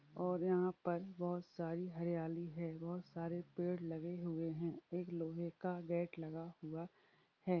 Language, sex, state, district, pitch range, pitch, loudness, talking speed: Hindi, male, Uttar Pradesh, Varanasi, 165-175 Hz, 170 Hz, -43 LUFS, 160 wpm